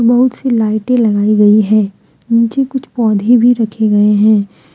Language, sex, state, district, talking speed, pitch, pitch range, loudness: Hindi, female, Jharkhand, Deoghar, 165 wpm, 220 Hz, 210-245 Hz, -12 LUFS